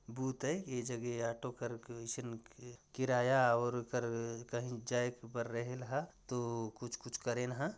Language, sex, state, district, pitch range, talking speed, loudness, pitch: Chhattisgarhi, male, Chhattisgarh, Jashpur, 120-125 Hz, 145 wpm, -39 LUFS, 120 Hz